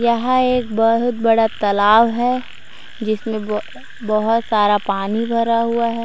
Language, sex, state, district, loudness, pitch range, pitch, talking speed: Hindi, female, Chhattisgarh, Raigarh, -17 LUFS, 215-235 Hz, 225 Hz, 140 wpm